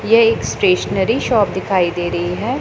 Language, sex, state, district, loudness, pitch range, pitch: Hindi, female, Punjab, Pathankot, -16 LUFS, 175-230 Hz, 205 Hz